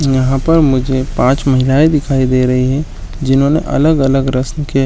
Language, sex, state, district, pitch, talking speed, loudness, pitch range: Hindi, male, Jharkhand, Jamtara, 135 Hz, 170 wpm, -13 LUFS, 130-145 Hz